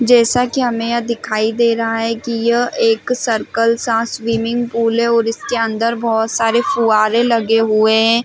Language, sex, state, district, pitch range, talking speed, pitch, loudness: Hindi, female, Chhattisgarh, Bilaspur, 225-235 Hz, 180 wpm, 230 Hz, -15 LUFS